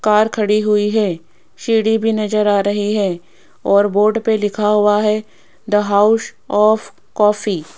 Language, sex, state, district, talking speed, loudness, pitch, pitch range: Hindi, female, Rajasthan, Jaipur, 160 wpm, -16 LUFS, 210 Hz, 205-215 Hz